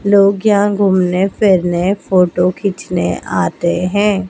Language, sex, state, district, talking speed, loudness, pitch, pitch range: Hindi, male, Madhya Pradesh, Dhar, 110 wpm, -14 LUFS, 195 Hz, 180-200 Hz